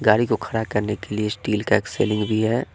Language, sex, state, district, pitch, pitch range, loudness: Hindi, male, Bihar, West Champaran, 110 Hz, 105-110 Hz, -22 LUFS